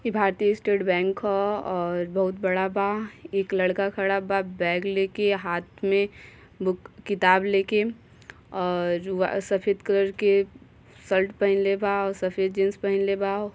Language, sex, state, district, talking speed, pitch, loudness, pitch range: Bhojpuri, female, Uttar Pradesh, Gorakhpur, 150 wpm, 195 Hz, -25 LUFS, 185-200 Hz